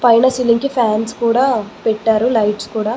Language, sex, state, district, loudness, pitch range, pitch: Telugu, female, Telangana, Mahabubabad, -15 LUFS, 215-240 Hz, 230 Hz